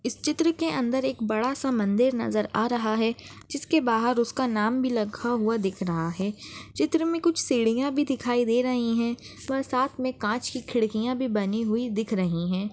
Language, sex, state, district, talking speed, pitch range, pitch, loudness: Hindi, female, Maharashtra, Chandrapur, 200 wpm, 220-260 Hz, 240 Hz, -26 LUFS